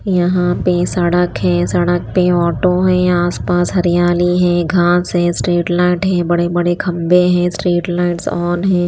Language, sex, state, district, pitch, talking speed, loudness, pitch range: Hindi, female, Chandigarh, Chandigarh, 175 Hz, 170 wpm, -14 LUFS, 175-180 Hz